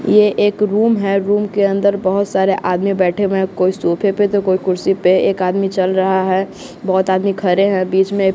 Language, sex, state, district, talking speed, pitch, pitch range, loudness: Hindi, male, Bihar, West Champaran, 225 wpm, 195 Hz, 185-200 Hz, -15 LUFS